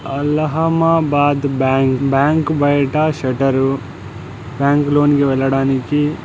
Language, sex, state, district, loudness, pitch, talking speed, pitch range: Telugu, male, Andhra Pradesh, Anantapur, -15 LUFS, 140 Hz, 75 wpm, 135-150 Hz